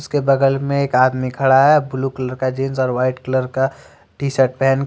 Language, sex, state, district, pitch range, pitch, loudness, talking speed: Hindi, male, Jharkhand, Deoghar, 130-135 Hz, 135 Hz, -17 LUFS, 220 wpm